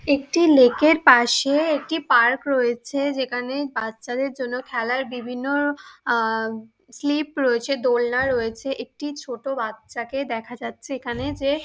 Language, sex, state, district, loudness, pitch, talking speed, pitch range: Bengali, female, West Bengal, Dakshin Dinajpur, -22 LUFS, 260 Hz, 125 wpm, 240-285 Hz